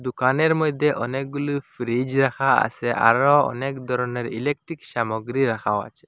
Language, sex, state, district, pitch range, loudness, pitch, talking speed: Bengali, male, Assam, Hailakandi, 120-145 Hz, -22 LUFS, 130 Hz, 130 wpm